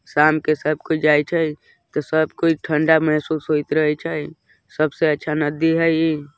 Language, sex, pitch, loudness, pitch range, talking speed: Bajjika, male, 155 Hz, -19 LUFS, 150-160 Hz, 180 wpm